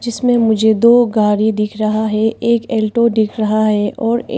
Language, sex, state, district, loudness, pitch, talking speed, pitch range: Hindi, female, Arunachal Pradesh, Papum Pare, -14 LUFS, 220 Hz, 190 wpm, 215-235 Hz